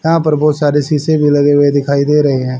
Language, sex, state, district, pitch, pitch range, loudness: Hindi, male, Haryana, Rohtak, 145 Hz, 140-150 Hz, -12 LUFS